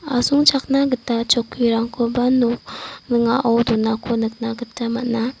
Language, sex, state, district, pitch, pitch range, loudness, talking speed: Garo, female, Meghalaya, West Garo Hills, 235 Hz, 230-250 Hz, -19 LUFS, 100 wpm